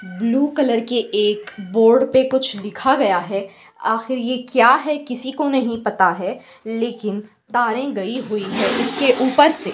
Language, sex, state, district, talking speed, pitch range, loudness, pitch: Hindi, female, Bihar, Lakhisarai, 165 wpm, 210-260 Hz, -18 LUFS, 240 Hz